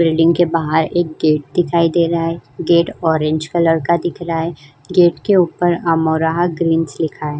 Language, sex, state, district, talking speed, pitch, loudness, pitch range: Hindi, female, Uttar Pradesh, Jyotiba Phule Nagar, 185 wpm, 165 Hz, -16 LUFS, 160-170 Hz